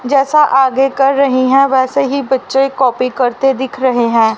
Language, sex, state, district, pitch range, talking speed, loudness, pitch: Hindi, female, Haryana, Rohtak, 255-275 Hz, 180 wpm, -12 LUFS, 265 Hz